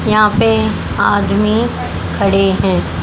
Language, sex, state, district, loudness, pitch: Hindi, female, Haryana, Jhajjar, -14 LUFS, 195 Hz